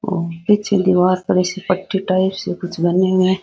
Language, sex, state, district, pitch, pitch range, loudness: Rajasthani, female, Rajasthan, Nagaur, 185 Hz, 180-190 Hz, -17 LUFS